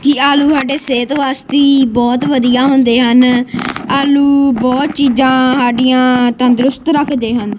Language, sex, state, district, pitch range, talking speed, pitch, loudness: Punjabi, female, Punjab, Kapurthala, 250-280 Hz, 125 wpm, 260 Hz, -11 LUFS